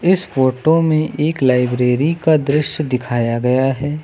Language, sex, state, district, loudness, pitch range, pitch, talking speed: Hindi, female, Uttar Pradesh, Lucknow, -16 LUFS, 125-155 Hz, 145 Hz, 150 wpm